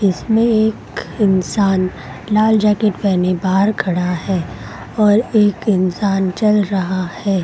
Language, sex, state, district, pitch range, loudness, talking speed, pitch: Hindi, female, Bihar, Gaya, 180-210 Hz, -16 LUFS, 130 wpm, 195 Hz